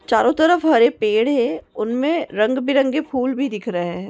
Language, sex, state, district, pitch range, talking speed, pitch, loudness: Hindi, female, Goa, North and South Goa, 215-280 Hz, 190 wpm, 255 Hz, -19 LUFS